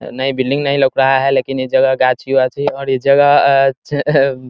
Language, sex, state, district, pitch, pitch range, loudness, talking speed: Hindi, male, Bihar, Muzaffarpur, 135 Hz, 130-140 Hz, -14 LUFS, 175 wpm